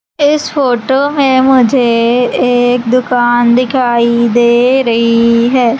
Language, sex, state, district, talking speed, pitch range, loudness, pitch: Hindi, female, Madhya Pradesh, Umaria, 105 wpm, 235-260 Hz, -10 LUFS, 245 Hz